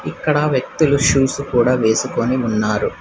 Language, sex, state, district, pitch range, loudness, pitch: Telugu, male, Telangana, Hyderabad, 110-140 Hz, -17 LUFS, 130 Hz